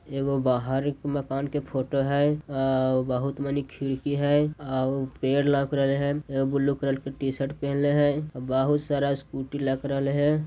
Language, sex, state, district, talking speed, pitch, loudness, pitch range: Magahi, male, Bihar, Jahanabad, 170 wpm, 140 Hz, -26 LUFS, 135-145 Hz